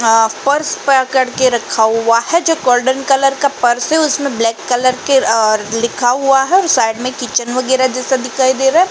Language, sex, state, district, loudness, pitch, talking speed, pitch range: Hindi, female, Uttar Pradesh, Jalaun, -13 LUFS, 255 Hz, 180 wpm, 235-275 Hz